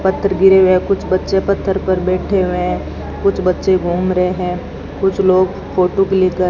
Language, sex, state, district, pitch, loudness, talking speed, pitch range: Hindi, female, Rajasthan, Bikaner, 185 Hz, -15 LUFS, 205 wpm, 185-195 Hz